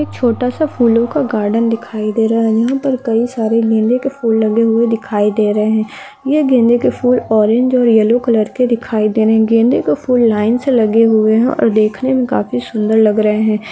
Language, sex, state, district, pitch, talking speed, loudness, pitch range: Hindi, female, Andhra Pradesh, Krishna, 230 Hz, 210 wpm, -13 LUFS, 220-250 Hz